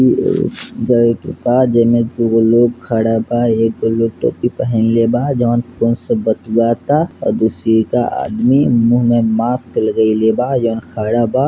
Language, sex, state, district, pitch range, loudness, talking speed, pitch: Hindi, male, Bihar, East Champaran, 115-120 Hz, -15 LUFS, 140 wpm, 115 Hz